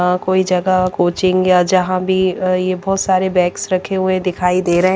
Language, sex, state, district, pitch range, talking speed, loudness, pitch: Hindi, female, Chandigarh, Chandigarh, 180-185 Hz, 180 wpm, -15 LUFS, 185 Hz